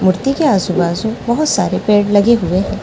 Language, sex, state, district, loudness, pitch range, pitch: Hindi, female, Delhi, New Delhi, -14 LUFS, 185-235 Hz, 205 Hz